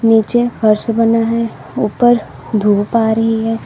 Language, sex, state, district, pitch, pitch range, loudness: Hindi, female, Uttar Pradesh, Lalitpur, 225 Hz, 220-230 Hz, -14 LUFS